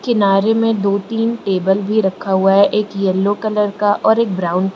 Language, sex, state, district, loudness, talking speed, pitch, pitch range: Hindi, female, Arunachal Pradesh, Lower Dibang Valley, -16 LUFS, 215 wpm, 205 Hz, 195-215 Hz